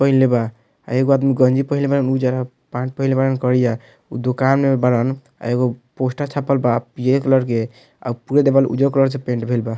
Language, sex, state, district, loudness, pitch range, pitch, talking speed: Bhojpuri, male, Bihar, Muzaffarpur, -18 LUFS, 125-135 Hz, 130 Hz, 215 wpm